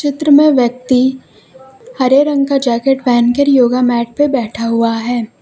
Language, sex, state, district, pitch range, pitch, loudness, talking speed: Hindi, female, Uttar Pradesh, Lucknow, 240-280 Hz, 260 Hz, -12 LUFS, 165 wpm